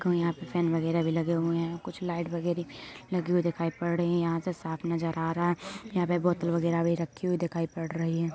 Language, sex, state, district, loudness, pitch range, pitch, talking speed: Hindi, female, Uttar Pradesh, Jyotiba Phule Nagar, -30 LUFS, 165-175 Hz, 170 Hz, 260 wpm